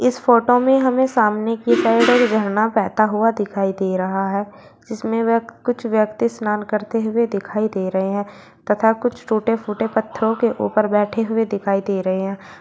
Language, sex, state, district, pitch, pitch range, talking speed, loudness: Hindi, female, Uttar Pradesh, Shamli, 215 Hz, 200-230 Hz, 185 wpm, -19 LUFS